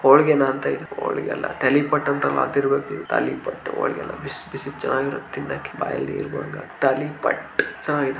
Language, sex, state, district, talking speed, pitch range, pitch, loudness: Kannada, male, Karnataka, Shimoga, 160 wpm, 135-145 Hz, 140 Hz, -23 LUFS